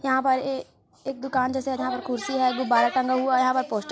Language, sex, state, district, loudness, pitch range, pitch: Hindi, female, Chhattisgarh, Kabirdham, -24 LUFS, 255-265 Hz, 255 Hz